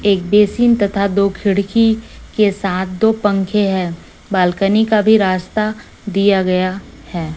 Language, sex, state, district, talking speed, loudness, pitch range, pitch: Hindi, female, Chhattisgarh, Raipur, 140 wpm, -15 LUFS, 190-210 Hz, 200 Hz